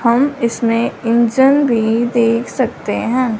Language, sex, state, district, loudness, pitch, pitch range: Hindi, female, Punjab, Fazilka, -15 LUFS, 235 Hz, 230-255 Hz